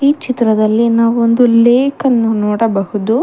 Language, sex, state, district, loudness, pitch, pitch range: Kannada, female, Karnataka, Bangalore, -12 LUFS, 230 Hz, 220-245 Hz